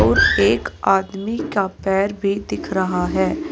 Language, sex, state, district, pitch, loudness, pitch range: Hindi, female, Uttar Pradesh, Saharanpur, 195 Hz, -19 LUFS, 190-205 Hz